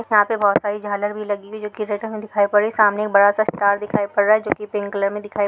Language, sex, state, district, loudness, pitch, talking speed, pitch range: Hindi, female, Maharashtra, Chandrapur, -19 LUFS, 205 Hz, 315 wpm, 205-210 Hz